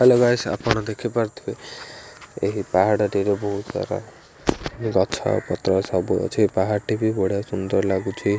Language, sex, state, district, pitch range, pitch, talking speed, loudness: Odia, male, Odisha, Khordha, 95-110 Hz, 105 Hz, 115 wpm, -23 LUFS